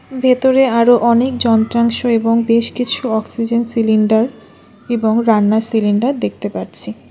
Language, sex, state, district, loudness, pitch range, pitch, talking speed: Bengali, female, West Bengal, Alipurduar, -15 LUFS, 225-245 Hz, 230 Hz, 120 wpm